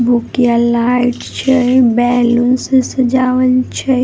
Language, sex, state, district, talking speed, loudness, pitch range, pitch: Maithili, female, Bihar, Madhepura, 120 wpm, -13 LUFS, 240-255 Hz, 250 Hz